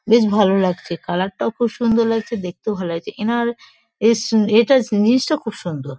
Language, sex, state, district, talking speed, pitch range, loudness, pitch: Bengali, female, West Bengal, Kolkata, 180 wpm, 190-235 Hz, -18 LUFS, 220 Hz